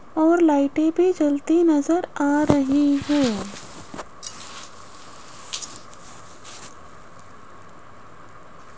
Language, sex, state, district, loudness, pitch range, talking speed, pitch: Hindi, female, Rajasthan, Jaipur, -20 LUFS, 285-325 Hz, 55 wpm, 295 Hz